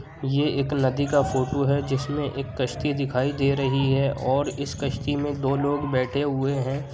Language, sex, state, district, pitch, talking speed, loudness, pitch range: Hindi, male, Uttar Pradesh, Muzaffarnagar, 140 Hz, 190 wpm, -25 LUFS, 135-140 Hz